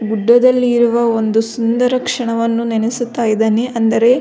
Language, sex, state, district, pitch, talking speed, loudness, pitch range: Kannada, female, Karnataka, Belgaum, 235 Hz, 130 wpm, -14 LUFS, 225-245 Hz